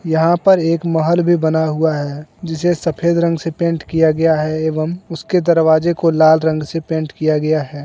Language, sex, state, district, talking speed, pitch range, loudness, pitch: Hindi, male, Jharkhand, Deoghar, 205 wpm, 155-170 Hz, -15 LUFS, 160 Hz